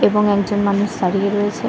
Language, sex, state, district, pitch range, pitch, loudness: Bengali, male, West Bengal, Kolkata, 200-205 Hz, 205 Hz, -18 LUFS